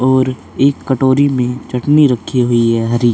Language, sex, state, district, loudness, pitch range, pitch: Hindi, male, Chhattisgarh, Korba, -14 LUFS, 120-130 Hz, 130 Hz